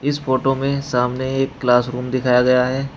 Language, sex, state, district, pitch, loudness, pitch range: Hindi, male, Uttar Pradesh, Shamli, 130 Hz, -18 LUFS, 125-135 Hz